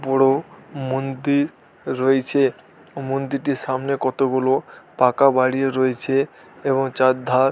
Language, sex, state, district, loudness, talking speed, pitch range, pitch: Bengali, male, West Bengal, Dakshin Dinajpur, -20 LUFS, 105 wpm, 130-135 Hz, 135 Hz